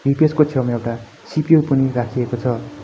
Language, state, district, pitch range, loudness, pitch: Nepali, West Bengal, Darjeeling, 120-150 Hz, -18 LUFS, 130 Hz